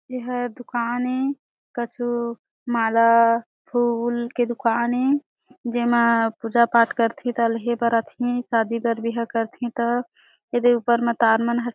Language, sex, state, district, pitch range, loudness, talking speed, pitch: Chhattisgarhi, female, Chhattisgarh, Sarguja, 230-245 Hz, -22 LUFS, 145 wpm, 235 Hz